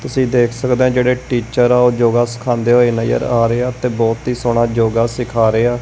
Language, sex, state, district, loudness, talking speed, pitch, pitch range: Punjabi, male, Punjab, Kapurthala, -15 LUFS, 235 wpm, 120 Hz, 115-125 Hz